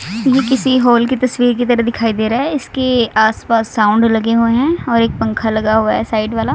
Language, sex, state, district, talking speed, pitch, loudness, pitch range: Hindi, female, Haryana, Rohtak, 230 wpm, 230 Hz, -14 LUFS, 220-255 Hz